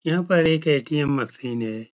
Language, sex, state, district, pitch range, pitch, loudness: Hindi, male, Uttar Pradesh, Etah, 120-160 Hz, 150 Hz, -22 LUFS